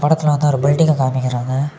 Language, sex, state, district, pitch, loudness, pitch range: Tamil, male, Tamil Nadu, Kanyakumari, 145 Hz, -16 LUFS, 130-150 Hz